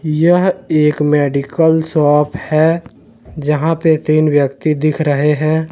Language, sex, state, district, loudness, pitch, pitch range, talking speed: Hindi, male, Jharkhand, Deoghar, -14 LUFS, 155 Hz, 150-160 Hz, 125 wpm